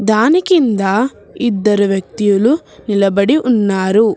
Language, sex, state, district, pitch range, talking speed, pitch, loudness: Telugu, female, Telangana, Hyderabad, 200-250 Hz, 85 wpm, 215 Hz, -14 LUFS